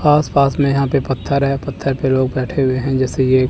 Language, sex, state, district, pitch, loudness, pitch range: Hindi, male, Chandigarh, Chandigarh, 135 Hz, -17 LUFS, 130-140 Hz